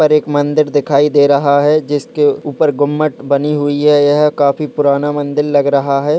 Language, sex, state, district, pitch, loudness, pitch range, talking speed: Hindi, male, Chhattisgarh, Kabirdham, 145 Hz, -13 LUFS, 140-150 Hz, 185 wpm